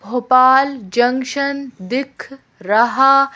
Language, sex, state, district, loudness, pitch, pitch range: Hindi, female, Madhya Pradesh, Bhopal, -15 LUFS, 260 Hz, 240-275 Hz